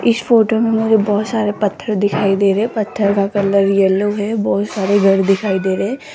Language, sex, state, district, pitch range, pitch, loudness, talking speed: Hindi, female, Rajasthan, Jaipur, 195-220 Hz, 205 Hz, -15 LUFS, 225 wpm